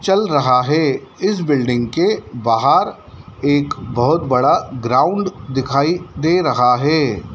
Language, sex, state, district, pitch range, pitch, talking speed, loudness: Hindi, male, Madhya Pradesh, Dhar, 125-160 Hz, 140 Hz, 125 wpm, -16 LUFS